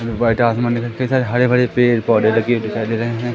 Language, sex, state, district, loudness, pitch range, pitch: Hindi, male, Madhya Pradesh, Katni, -17 LUFS, 115-120 Hz, 120 Hz